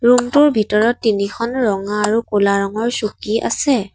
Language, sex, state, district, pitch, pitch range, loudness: Assamese, female, Assam, Sonitpur, 220 Hz, 210-240 Hz, -17 LUFS